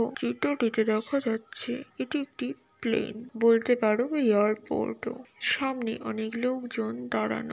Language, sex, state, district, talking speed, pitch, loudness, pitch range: Bengali, female, West Bengal, Paschim Medinipur, 120 wpm, 230 Hz, -28 LUFS, 220-250 Hz